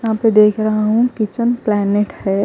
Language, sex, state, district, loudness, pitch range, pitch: Hindi, female, Punjab, Kapurthala, -15 LUFS, 210-225 Hz, 215 Hz